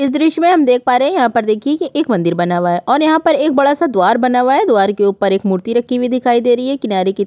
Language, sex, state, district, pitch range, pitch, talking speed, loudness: Hindi, female, Chhattisgarh, Korba, 200-280 Hz, 245 Hz, 340 wpm, -14 LUFS